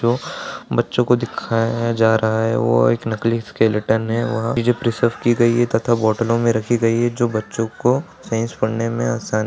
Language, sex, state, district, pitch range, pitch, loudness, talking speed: Hindi, male, Bihar, Purnia, 110-120 Hz, 115 Hz, -19 LUFS, 210 wpm